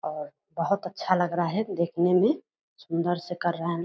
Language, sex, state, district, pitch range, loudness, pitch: Angika, female, Bihar, Purnia, 170-180 Hz, -27 LUFS, 175 Hz